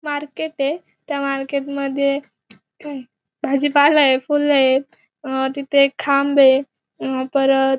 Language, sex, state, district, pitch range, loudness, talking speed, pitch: Marathi, female, Maharashtra, Pune, 270-285 Hz, -18 LUFS, 130 wpm, 275 Hz